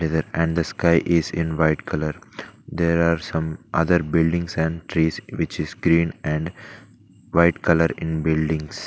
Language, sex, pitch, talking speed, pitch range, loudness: English, male, 85 Hz, 155 wpm, 80-85 Hz, -22 LUFS